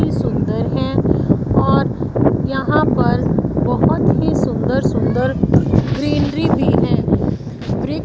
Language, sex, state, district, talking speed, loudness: Hindi, female, Punjab, Fazilka, 95 wpm, -16 LUFS